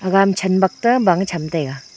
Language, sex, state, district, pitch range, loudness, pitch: Wancho, female, Arunachal Pradesh, Longding, 165-195 Hz, -17 LUFS, 190 Hz